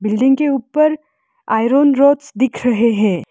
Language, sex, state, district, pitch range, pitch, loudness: Hindi, female, Arunachal Pradesh, Lower Dibang Valley, 225-285 Hz, 260 Hz, -15 LUFS